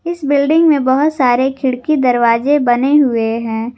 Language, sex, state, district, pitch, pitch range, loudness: Hindi, female, Jharkhand, Garhwa, 265 Hz, 245-290 Hz, -13 LUFS